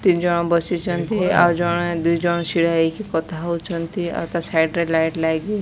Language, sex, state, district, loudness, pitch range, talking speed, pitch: Odia, female, Odisha, Malkangiri, -20 LUFS, 165-175 Hz, 160 wpm, 170 Hz